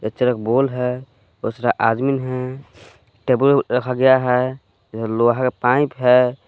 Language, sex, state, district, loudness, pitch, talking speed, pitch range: Hindi, male, Jharkhand, Palamu, -18 LUFS, 125 Hz, 150 wpm, 115-130 Hz